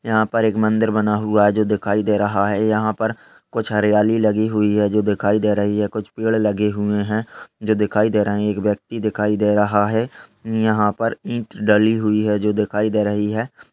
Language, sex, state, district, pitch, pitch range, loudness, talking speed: Hindi, male, Uttar Pradesh, Ghazipur, 105 Hz, 105-110 Hz, -19 LUFS, 230 wpm